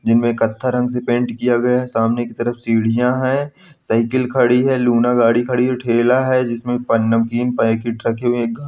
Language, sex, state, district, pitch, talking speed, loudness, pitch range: Hindi, male, Bihar, Muzaffarpur, 120 Hz, 220 wpm, -17 LUFS, 115-125 Hz